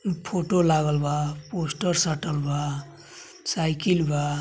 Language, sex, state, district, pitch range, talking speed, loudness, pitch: Bhojpuri, male, Uttar Pradesh, Gorakhpur, 145-175 Hz, 110 wpm, -25 LUFS, 155 Hz